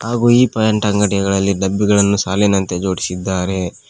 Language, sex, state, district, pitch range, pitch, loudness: Kannada, male, Karnataka, Koppal, 95-105 Hz, 100 Hz, -16 LUFS